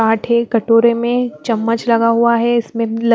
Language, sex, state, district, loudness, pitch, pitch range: Hindi, female, Bihar, West Champaran, -15 LUFS, 230 Hz, 230-235 Hz